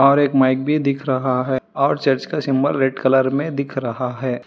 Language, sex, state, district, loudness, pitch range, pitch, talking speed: Hindi, female, Telangana, Hyderabad, -19 LUFS, 130-140 Hz, 135 Hz, 230 wpm